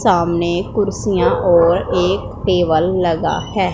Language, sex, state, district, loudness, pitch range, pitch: Hindi, female, Punjab, Pathankot, -16 LUFS, 170-185 Hz, 175 Hz